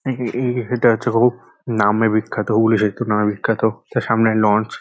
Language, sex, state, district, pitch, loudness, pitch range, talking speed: Bengali, male, West Bengal, North 24 Parganas, 115 Hz, -18 LUFS, 110-120 Hz, 175 wpm